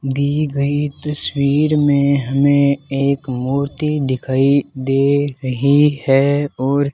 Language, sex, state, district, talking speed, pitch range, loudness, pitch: Hindi, male, Rajasthan, Bikaner, 110 wpm, 135-145 Hz, -16 LUFS, 140 Hz